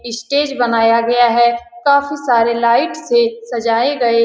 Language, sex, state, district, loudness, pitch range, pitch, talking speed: Hindi, female, Bihar, Saran, -14 LUFS, 230-280 Hz, 235 Hz, 140 wpm